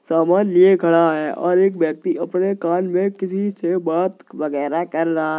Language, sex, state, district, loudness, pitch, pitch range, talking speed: Hindi, male, Uttar Pradesh, Jalaun, -18 LUFS, 175 Hz, 165-185 Hz, 180 wpm